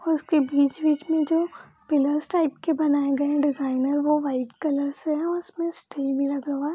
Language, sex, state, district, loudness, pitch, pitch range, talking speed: Hindi, female, Bihar, Purnia, -24 LUFS, 295 Hz, 280-315 Hz, 195 wpm